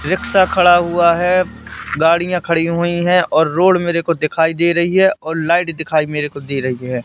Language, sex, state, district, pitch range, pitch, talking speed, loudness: Hindi, male, Madhya Pradesh, Katni, 160-180 Hz, 170 Hz, 205 wpm, -15 LUFS